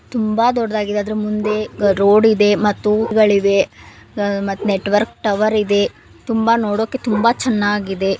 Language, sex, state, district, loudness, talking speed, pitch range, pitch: Kannada, female, Karnataka, Belgaum, -17 LUFS, 115 wpm, 205-220 Hz, 210 Hz